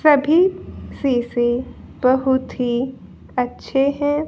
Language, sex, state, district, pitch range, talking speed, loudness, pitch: Hindi, female, Haryana, Jhajjar, 245-290 Hz, 85 wpm, -19 LUFS, 260 Hz